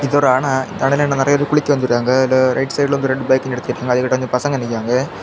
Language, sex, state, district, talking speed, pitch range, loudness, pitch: Tamil, male, Tamil Nadu, Kanyakumari, 230 wpm, 125-140 Hz, -16 LUFS, 130 Hz